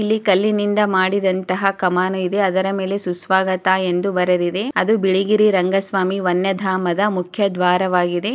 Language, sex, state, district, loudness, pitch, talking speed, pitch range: Kannada, female, Karnataka, Chamarajanagar, -18 LUFS, 190 Hz, 120 wpm, 185-200 Hz